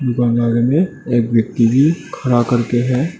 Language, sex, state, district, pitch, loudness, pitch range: Hindi, male, Arunachal Pradesh, Lower Dibang Valley, 120 Hz, -16 LUFS, 120-135 Hz